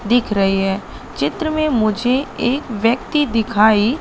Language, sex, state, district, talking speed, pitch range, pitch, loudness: Hindi, female, Madhya Pradesh, Katni, 135 wpm, 210-265 Hz, 230 Hz, -17 LUFS